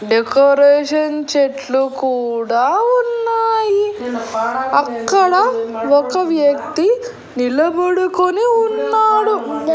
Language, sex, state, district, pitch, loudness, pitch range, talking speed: Telugu, female, Andhra Pradesh, Annamaya, 310 Hz, -15 LUFS, 265-425 Hz, 55 wpm